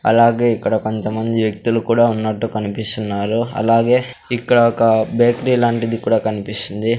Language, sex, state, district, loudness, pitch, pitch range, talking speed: Telugu, male, Andhra Pradesh, Sri Satya Sai, -17 LUFS, 115 Hz, 110-120 Hz, 120 wpm